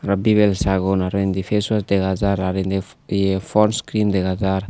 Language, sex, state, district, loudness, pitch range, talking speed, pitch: Chakma, male, Tripura, Unakoti, -19 LUFS, 95-105 Hz, 190 wpm, 95 Hz